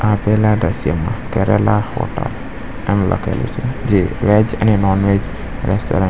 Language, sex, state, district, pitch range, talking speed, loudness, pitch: Gujarati, male, Gujarat, Valsad, 100-115 Hz, 130 wpm, -17 LUFS, 105 Hz